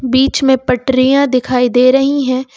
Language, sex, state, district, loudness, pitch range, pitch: Hindi, female, Uttar Pradesh, Lucknow, -12 LUFS, 255-270 Hz, 260 Hz